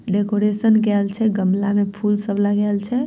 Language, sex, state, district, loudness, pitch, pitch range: Maithili, female, Bihar, Samastipur, -19 LUFS, 205 Hz, 200-210 Hz